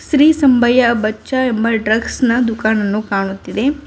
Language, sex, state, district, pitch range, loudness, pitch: Kannada, female, Karnataka, Bidar, 215-260 Hz, -15 LUFS, 235 Hz